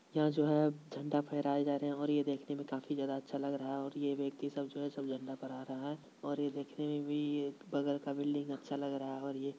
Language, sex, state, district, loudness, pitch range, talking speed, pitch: Hindi, male, Bihar, Supaul, -38 LUFS, 140-145 Hz, 275 wpm, 140 Hz